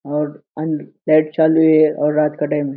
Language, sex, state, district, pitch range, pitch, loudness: Hindi, male, Maharashtra, Aurangabad, 150-155 Hz, 155 Hz, -17 LUFS